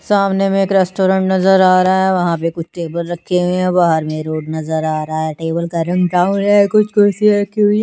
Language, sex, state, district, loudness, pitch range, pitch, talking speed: Hindi, female, Chandigarh, Chandigarh, -15 LUFS, 165-195 Hz, 180 Hz, 245 wpm